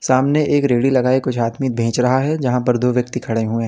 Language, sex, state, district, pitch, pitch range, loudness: Hindi, male, Uttar Pradesh, Lalitpur, 125 Hz, 120-130 Hz, -17 LUFS